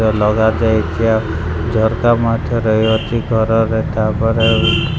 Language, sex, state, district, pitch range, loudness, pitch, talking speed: Odia, male, Odisha, Malkangiri, 110-115 Hz, -15 LUFS, 110 Hz, 130 wpm